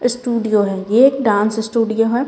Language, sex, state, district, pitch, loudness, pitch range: Hindi, female, Bihar, Patna, 225 Hz, -16 LUFS, 215-245 Hz